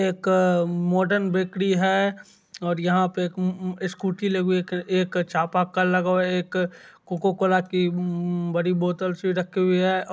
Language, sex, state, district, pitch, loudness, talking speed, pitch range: Maithili, male, Bihar, Supaul, 185 Hz, -23 LUFS, 180 wpm, 180-185 Hz